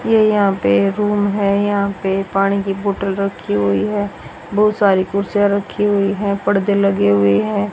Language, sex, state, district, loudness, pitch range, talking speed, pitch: Hindi, female, Haryana, Rohtak, -16 LUFS, 195-205 Hz, 180 wpm, 200 Hz